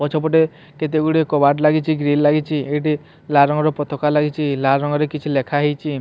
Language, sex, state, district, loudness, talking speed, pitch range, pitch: Odia, male, Odisha, Sambalpur, -18 LUFS, 160 wpm, 145-155 Hz, 150 Hz